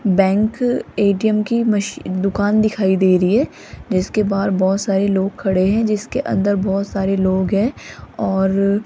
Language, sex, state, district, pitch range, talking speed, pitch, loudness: Hindi, female, Rajasthan, Jaipur, 190-215 Hz, 165 wpm, 200 Hz, -18 LUFS